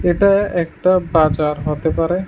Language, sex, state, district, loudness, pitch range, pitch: Bengali, male, Tripura, West Tripura, -16 LUFS, 155-185 Hz, 170 Hz